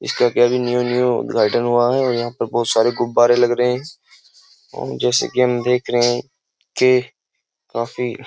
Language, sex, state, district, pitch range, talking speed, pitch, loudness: Hindi, male, Uttar Pradesh, Jyotiba Phule Nagar, 120-125 Hz, 195 wpm, 120 Hz, -18 LUFS